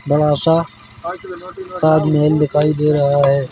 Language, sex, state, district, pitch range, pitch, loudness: Hindi, male, Madhya Pradesh, Bhopal, 145-165 Hz, 150 Hz, -15 LUFS